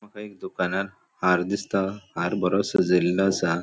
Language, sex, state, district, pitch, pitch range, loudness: Konkani, male, Goa, North and South Goa, 95 Hz, 90-100 Hz, -24 LUFS